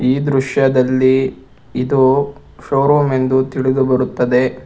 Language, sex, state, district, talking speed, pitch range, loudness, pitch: Kannada, male, Karnataka, Bangalore, 90 wpm, 130-135 Hz, -15 LUFS, 130 Hz